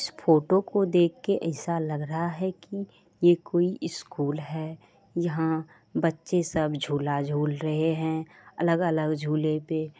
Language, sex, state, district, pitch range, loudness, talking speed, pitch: Maithili, female, Bihar, Supaul, 155-175 Hz, -27 LUFS, 145 wpm, 160 Hz